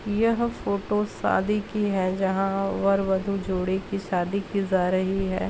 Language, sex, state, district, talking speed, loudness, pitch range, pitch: Hindi, female, Uttar Pradesh, Varanasi, 155 wpm, -25 LUFS, 190-205 Hz, 195 Hz